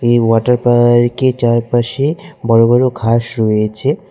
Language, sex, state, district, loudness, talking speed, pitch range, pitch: Bengali, male, West Bengal, Cooch Behar, -13 LUFS, 130 wpm, 115-125 Hz, 120 Hz